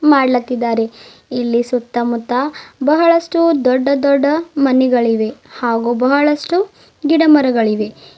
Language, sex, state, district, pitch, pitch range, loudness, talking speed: Kannada, female, Karnataka, Bidar, 260 Hz, 240-300 Hz, -15 LUFS, 75 wpm